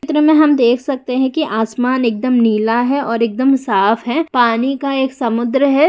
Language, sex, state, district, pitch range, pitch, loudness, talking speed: Hindi, female, Bihar, Jamui, 235-275 Hz, 255 Hz, -15 LUFS, 205 wpm